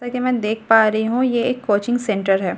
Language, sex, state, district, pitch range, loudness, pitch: Hindi, female, Delhi, New Delhi, 210-245 Hz, -18 LUFS, 225 Hz